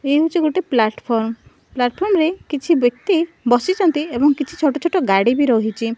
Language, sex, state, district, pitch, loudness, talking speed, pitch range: Odia, female, Odisha, Malkangiri, 290 Hz, -18 LUFS, 160 wpm, 240-335 Hz